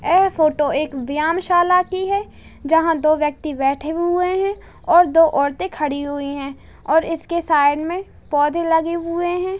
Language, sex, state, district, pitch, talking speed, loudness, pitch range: Hindi, female, Uttar Pradesh, Ghazipur, 325 Hz, 160 wpm, -18 LUFS, 295-355 Hz